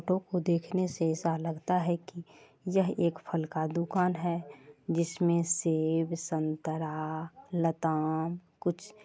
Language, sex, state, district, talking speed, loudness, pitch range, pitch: Maithili, female, Bihar, Supaul, 125 wpm, -31 LUFS, 160-175 Hz, 165 Hz